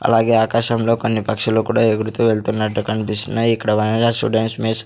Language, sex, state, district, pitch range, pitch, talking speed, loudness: Telugu, male, Andhra Pradesh, Sri Satya Sai, 110-115 Hz, 110 Hz, 160 wpm, -17 LUFS